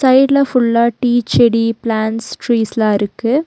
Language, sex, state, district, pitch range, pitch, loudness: Tamil, female, Tamil Nadu, Nilgiris, 225-250 Hz, 235 Hz, -14 LUFS